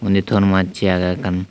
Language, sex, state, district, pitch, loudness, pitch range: Chakma, male, Tripura, Dhalai, 95 Hz, -17 LUFS, 90-100 Hz